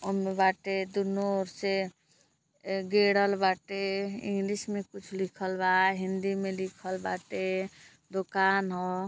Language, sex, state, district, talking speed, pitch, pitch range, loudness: Hindi, female, Uttar Pradesh, Gorakhpur, 125 wpm, 195 Hz, 185-195 Hz, -30 LUFS